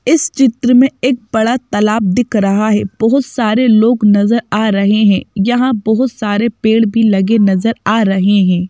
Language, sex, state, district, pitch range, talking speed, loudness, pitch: Hindi, female, Madhya Pradesh, Bhopal, 205-240 Hz, 180 wpm, -12 LUFS, 220 Hz